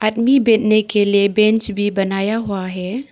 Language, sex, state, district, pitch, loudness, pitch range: Hindi, female, Arunachal Pradesh, Lower Dibang Valley, 215 Hz, -16 LUFS, 200-225 Hz